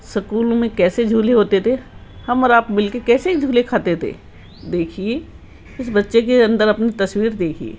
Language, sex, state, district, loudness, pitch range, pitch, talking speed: Hindi, male, Rajasthan, Jaipur, -17 LUFS, 195-240 Hz, 220 Hz, 175 wpm